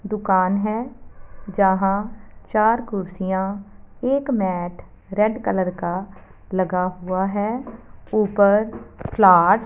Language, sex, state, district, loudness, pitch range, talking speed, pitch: Hindi, female, Punjab, Fazilka, -21 LUFS, 185-215 Hz, 100 wpm, 200 Hz